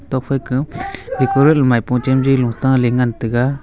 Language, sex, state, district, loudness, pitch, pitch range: Wancho, male, Arunachal Pradesh, Longding, -16 LUFS, 130 Hz, 125-135 Hz